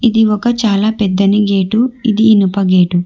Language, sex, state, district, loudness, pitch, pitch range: Telugu, female, Telangana, Hyderabad, -12 LUFS, 210 Hz, 195-225 Hz